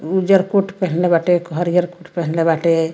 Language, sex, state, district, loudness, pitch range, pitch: Bhojpuri, female, Bihar, Muzaffarpur, -17 LUFS, 165-185 Hz, 175 Hz